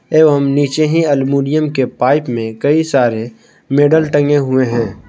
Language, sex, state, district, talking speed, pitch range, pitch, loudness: Hindi, male, Jharkhand, Palamu, 155 wpm, 130-155 Hz, 140 Hz, -13 LUFS